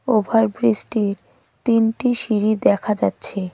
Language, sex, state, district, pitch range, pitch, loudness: Bengali, female, West Bengal, Cooch Behar, 210-230 Hz, 220 Hz, -19 LUFS